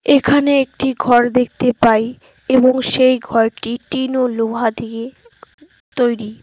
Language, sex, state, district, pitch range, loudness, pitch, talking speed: Bengali, female, West Bengal, Cooch Behar, 230-265 Hz, -16 LUFS, 250 Hz, 120 wpm